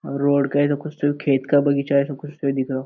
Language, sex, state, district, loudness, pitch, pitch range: Hindi, male, Maharashtra, Aurangabad, -21 LUFS, 140 Hz, 140-145 Hz